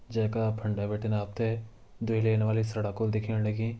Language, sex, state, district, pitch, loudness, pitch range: Garhwali, male, Uttarakhand, Tehri Garhwal, 110 Hz, -30 LUFS, 105-110 Hz